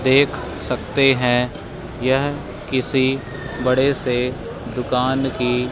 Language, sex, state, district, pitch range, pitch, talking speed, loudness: Hindi, male, Madhya Pradesh, Katni, 125-135 Hz, 130 Hz, 95 wpm, -20 LUFS